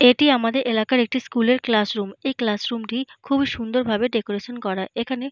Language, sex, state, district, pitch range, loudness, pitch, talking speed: Bengali, female, Jharkhand, Jamtara, 220-260 Hz, -22 LUFS, 240 Hz, 205 wpm